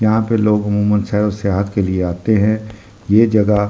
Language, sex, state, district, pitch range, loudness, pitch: Hindi, male, Delhi, New Delhi, 100-110 Hz, -16 LUFS, 105 Hz